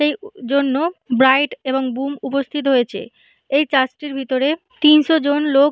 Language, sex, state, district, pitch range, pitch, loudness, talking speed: Bengali, female, West Bengal, Malda, 265-300 Hz, 280 Hz, -17 LUFS, 145 wpm